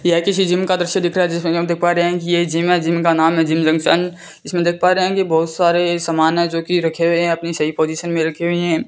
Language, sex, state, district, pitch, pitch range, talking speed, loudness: Hindi, female, Rajasthan, Bikaner, 170 Hz, 165-175 Hz, 305 wpm, -17 LUFS